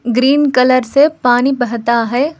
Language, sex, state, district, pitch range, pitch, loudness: Hindi, female, Telangana, Hyderabad, 245-275 Hz, 255 Hz, -13 LUFS